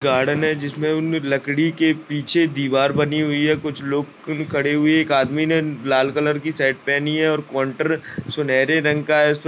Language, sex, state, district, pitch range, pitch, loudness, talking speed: Hindi, male, Chhattisgarh, Bastar, 140-155 Hz, 150 Hz, -20 LUFS, 215 wpm